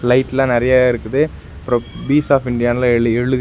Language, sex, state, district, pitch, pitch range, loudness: Tamil, male, Tamil Nadu, Nilgiris, 125 Hz, 120-130 Hz, -16 LUFS